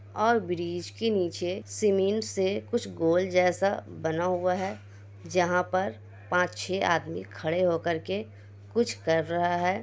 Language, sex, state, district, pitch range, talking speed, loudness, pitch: Hindi, female, Bihar, Kishanganj, 160-190 Hz, 145 wpm, -28 LUFS, 180 Hz